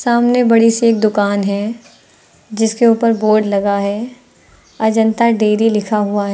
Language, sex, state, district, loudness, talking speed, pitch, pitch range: Hindi, female, Uttar Pradesh, Lucknow, -14 LUFS, 150 wpm, 220 Hz, 205-230 Hz